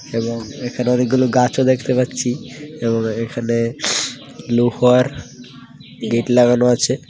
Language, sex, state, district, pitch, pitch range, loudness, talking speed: Bengali, male, Tripura, West Tripura, 125 Hz, 115-130 Hz, -17 LUFS, 110 wpm